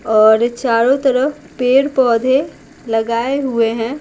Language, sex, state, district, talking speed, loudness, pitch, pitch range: Hindi, female, Bihar, Patna, 105 wpm, -15 LUFS, 250 Hz, 230-270 Hz